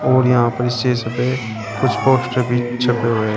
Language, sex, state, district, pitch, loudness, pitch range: Hindi, male, Uttar Pradesh, Shamli, 120 Hz, -18 LUFS, 115-125 Hz